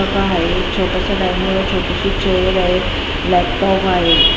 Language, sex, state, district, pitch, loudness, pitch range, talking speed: Marathi, female, Maharashtra, Mumbai Suburban, 185 Hz, -16 LUFS, 180-190 Hz, 125 wpm